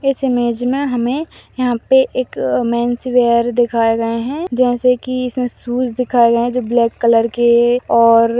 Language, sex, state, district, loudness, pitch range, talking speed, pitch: Hindi, female, Rajasthan, Churu, -15 LUFS, 235-255 Hz, 180 wpm, 245 Hz